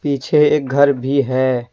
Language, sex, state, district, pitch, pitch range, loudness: Hindi, male, Jharkhand, Deoghar, 140 Hz, 130-145 Hz, -15 LUFS